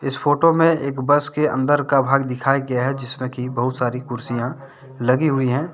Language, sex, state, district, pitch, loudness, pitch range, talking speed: Hindi, male, Jharkhand, Deoghar, 135 Hz, -20 LUFS, 125-145 Hz, 210 wpm